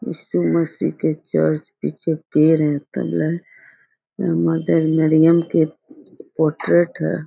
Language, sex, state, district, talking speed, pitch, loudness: Hindi, female, Bihar, Muzaffarpur, 115 wpm, 155 Hz, -19 LUFS